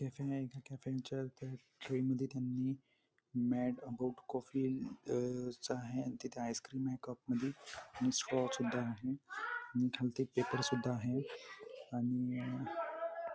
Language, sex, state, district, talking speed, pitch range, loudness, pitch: Marathi, male, Maharashtra, Nagpur, 130 wpm, 125-135 Hz, -40 LUFS, 130 Hz